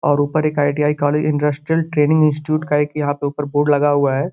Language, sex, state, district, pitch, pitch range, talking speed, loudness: Hindi, male, Uttar Pradesh, Gorakhpur, 150 Hz, 145-155 Hz, 235 wpm, -17 LUFS